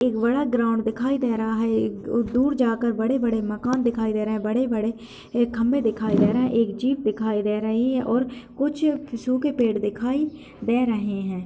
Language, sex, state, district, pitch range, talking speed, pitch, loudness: Hindi, female, Uttar Pradesh, Gorakhpur, 220-255 Hz, 205 wpm, 235 Hz, -23 LUFS